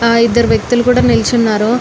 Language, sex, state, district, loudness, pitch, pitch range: Telugu, female, Telangana, Nalgonda, -12 LUFS, 235 Hz, 230-240 Hz